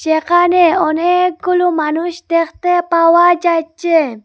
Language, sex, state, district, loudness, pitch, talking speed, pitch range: Bengali, female, Assam, Hailakandi, -13 LUFS, 345 Hz, 85 wpm, 325-355 Hz